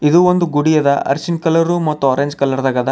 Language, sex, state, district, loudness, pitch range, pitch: Kannada, male, Karnataka, Bidar, -15 LUFS, 140-170 Hz, 150 Hz